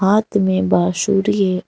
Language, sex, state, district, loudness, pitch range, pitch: Hindi, female, Jharkhand, Garhwa, -17 LUFS, 185-205 Hz, 195 Hz